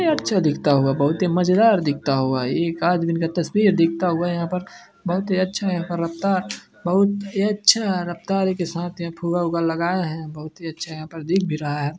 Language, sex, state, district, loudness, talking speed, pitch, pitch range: Hindi, male, Chhattisgarh, Sarguja, -21 LUFS, 215 wpm, 175 Hz, 165-190 Hz